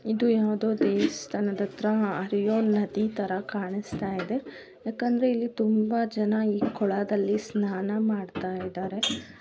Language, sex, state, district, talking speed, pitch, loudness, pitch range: Kannada, female, Karnataka, Bellary, 110 wpm, 210 Hz, -27 LUFS, 200-220 Hz